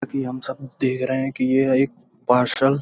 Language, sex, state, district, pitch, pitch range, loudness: Hindi, male, Bihar, Gopalganj, 130 Hz, 130-135 Hz, -21 LUFS